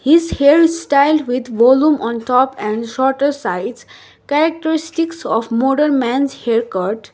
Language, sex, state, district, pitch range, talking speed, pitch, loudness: English, female, Sikkim, Gangtok, 235-300 Hz, 120 wpm, 270 Hz, -15 LUFS